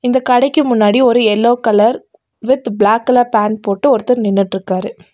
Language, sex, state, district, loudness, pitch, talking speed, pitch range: Tamil, female, Tamil Nadu, Nilgiris, -13 LUFS, 230 Hz, 150 wpm, 210-250 Hz